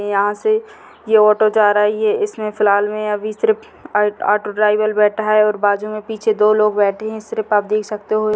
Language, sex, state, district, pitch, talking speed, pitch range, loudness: Hindi, female, Bihar, Sitamarhi, 215 Hz, 185 wpm, 210-215 Hz, -16 LUFS